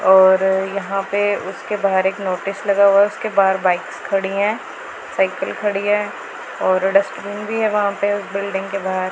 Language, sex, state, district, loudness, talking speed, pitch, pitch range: Hindi, female, Punjab, Pathankot, -18 LUFS, 180 wpm, 195 Hz, 190-205 Hz